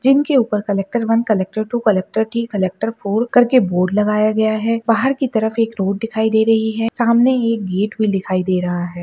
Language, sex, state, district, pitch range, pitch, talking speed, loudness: Hindi, female, Maharashtra, Solapur, 200-230 Hz, 220 Hz, 215 wpm, -17 LUFS